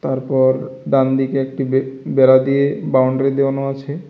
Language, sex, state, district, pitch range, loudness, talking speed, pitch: Bengali, male, Tripura, West Tripura, 130-135 Hz, -17 LUFS, 145 wpm, 135 Hz